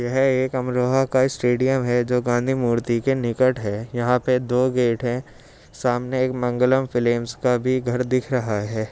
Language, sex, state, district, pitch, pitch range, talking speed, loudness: Hindi, male, Uttar Pradesh, Jyotiba Phule Nagar, 125 Hz, 120-130 Hz, 180 wpm, -21 LUFS